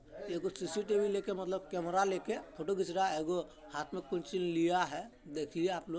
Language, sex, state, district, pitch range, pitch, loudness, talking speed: Maithili, male, Bihar, Supaul, 170-190 Hz, 180 Hz, -36 LUFS, 200 wpm